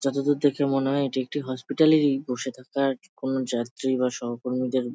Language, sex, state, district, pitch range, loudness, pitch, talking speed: Bengali, male, West Bengal, Jalpaiguri, 125-140 Hz, -25 LUFS, 130 Hz, 180 wpm